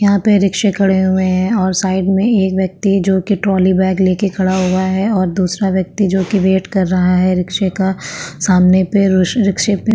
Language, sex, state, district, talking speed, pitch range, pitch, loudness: Hindi, female, Uttarakhand, Tehri Garhwal, 210 wpm, 185-200 Hz, 190 Hz, -14 LUFS